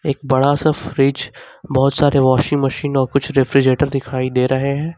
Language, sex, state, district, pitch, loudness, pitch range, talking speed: Hindi, male, Jharkhand, Ranchi, 135 Hz, -16 LUFS, 130-145 Hz, 180 wpm